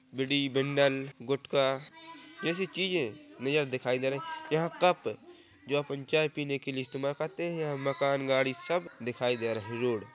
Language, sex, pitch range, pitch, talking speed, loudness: Hindi, male, 135-160 Hz, 140 Hz, 170 wpm, -31 LUFS